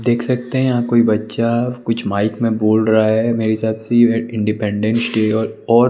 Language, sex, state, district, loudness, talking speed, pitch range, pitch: Hindi, male, Odisha, Sambalpur, -16 LUFS, 205 wpm, 110-120 Hz, 115 Hz